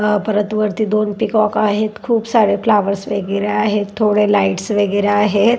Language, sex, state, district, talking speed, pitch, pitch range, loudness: Marathi, female, Maharashtra, Dhule, 150 wpm, 210 Hz, 205-215 Hz, -16 LUFS